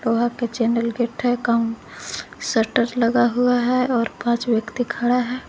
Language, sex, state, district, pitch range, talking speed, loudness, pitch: Hindi, female, Jharkhand, Garhwa, 230-245 Hz, 140 wpm, -21 LUFS, 240 Hz